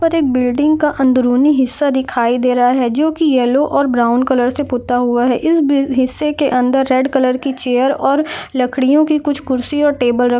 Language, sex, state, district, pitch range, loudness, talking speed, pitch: Hindi, female, Bihar, Saran, 250-290 Hz, -14 LUFS, 220 wpm, 260 Hz